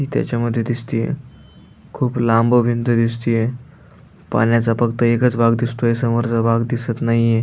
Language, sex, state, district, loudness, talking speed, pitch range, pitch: Marathi, male, Maharashtra, Aurangabad, -18 LUFS, 130 wpm, 115-120 Hz, 115 Hz